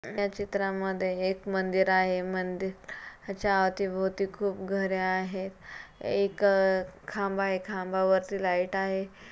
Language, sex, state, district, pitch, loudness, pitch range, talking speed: Marathi, female, Maharashtra, Pune, 190 Hz, -29 LUFS, 185-195 Hz, 115 wpm